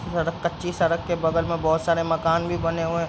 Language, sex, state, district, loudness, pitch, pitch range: Hindi, male, Bihar, Bhagalpur, -24 LUFS, 165 Hz, 165-170 Hz